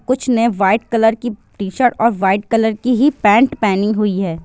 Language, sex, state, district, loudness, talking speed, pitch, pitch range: Hindi, female, Bihar, Sitamarhi, -15 LUFS, 205 wpm, 225 Hz, 205-245 Hz